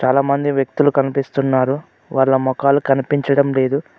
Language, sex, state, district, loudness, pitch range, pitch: Telugu, male, Telangana, Mahabubabad, -17 LUFS, 135-140 Hz, 140 Hz